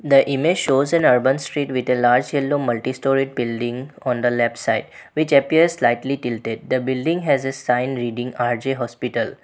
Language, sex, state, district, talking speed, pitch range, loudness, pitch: English, male, Assam, Sonitpur, 185 wpm, 120-140 Hz, -20 LUFS, 130 Hz